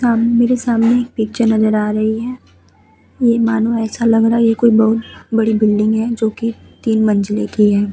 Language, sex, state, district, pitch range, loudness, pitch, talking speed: Hindi, female, Uttar Pradesh, Muzaffarnagar, 215-230 Hz, -15 LUFS, 225 Hz, 205 wpm